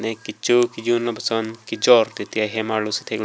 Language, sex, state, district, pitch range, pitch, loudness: Karbi, male, Assam, Karbi Anglong, 110-115 Hz, 110 Hz, -21 LUFS